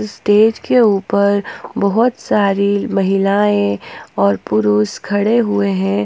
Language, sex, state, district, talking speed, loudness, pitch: Hindi, female, Jharkhand, Ranchi, 110 wpm, -15 LUFS, 200 Hz